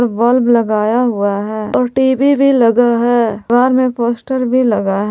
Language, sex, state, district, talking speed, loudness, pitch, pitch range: Hindi, female, Jharkhand, Palamu, 165 wpm, -13 LUFS, 240 Hz, 215-255 Hz